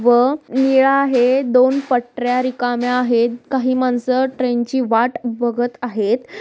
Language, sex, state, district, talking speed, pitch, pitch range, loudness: Marathi, female, Maharashtra, Sindhudurg, 130 wpm, 250 Hz, 240-260 Hz, -17 LUFS